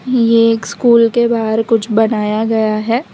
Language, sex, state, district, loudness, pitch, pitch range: Hindi, female, Gujarat, Valsad, -13 LUFS, 225 Hz, 220-235 Hz